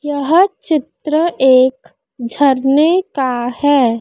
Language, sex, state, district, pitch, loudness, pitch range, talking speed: Hindi, female, Madhya Pradesh, Dhar, 275 Hz, -14 LUFS, 255-310 Hz, 90 wpm